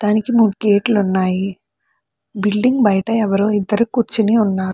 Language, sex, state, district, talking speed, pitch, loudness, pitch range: Telugu, female, Andhra Pradesh, Chittoor, 125 wpm, 210 Hz, -16 LUFS, 195-225 Hz